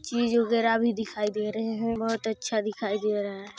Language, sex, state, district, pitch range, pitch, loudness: Hindi, female, Chhattisgarh, Sarguja, 210-230 Hz, 220 Hz, -27 LUFS